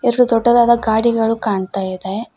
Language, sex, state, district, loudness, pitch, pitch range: Kannada, female, Karnataka, Koppal, -16 LUFS, 225 Hz, 200-235 Hz